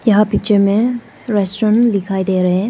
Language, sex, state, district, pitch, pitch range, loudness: Hindi, female, Arunachal Pradesh, Lower Dibang Valley, 205 Hz, 195-225 Hz, -15 LUFS